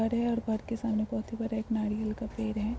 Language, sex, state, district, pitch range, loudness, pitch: Hindi, female, Bihar, Darbhanga, 215-230 Hz, -32 LUFS, 225 Hz